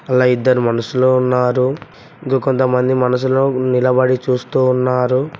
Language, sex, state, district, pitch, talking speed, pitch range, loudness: Telugu, male, Telangana, Mahabubabad, 130 Hz, 110 wpm, 125-130 Hz, -15 LUFS